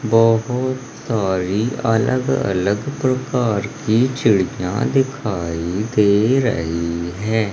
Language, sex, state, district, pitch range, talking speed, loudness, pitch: Hindi, male, Madhya Pradesh, Umaria, 95-125 Hz, 80 wpm, -19 LUFS, 110 Hz